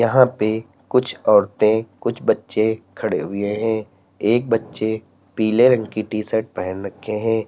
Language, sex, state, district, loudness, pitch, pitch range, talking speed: Hindi, male, Uttar Pradesh, Lalitpur, -20 LUFS, 110 Hz, 105-115 Hz, 145 wpm